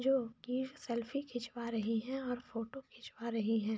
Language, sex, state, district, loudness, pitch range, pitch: Hindi, female, Jharkhand, Sahebganj, -39 LUFS, 225-260 Hz, 240 Hz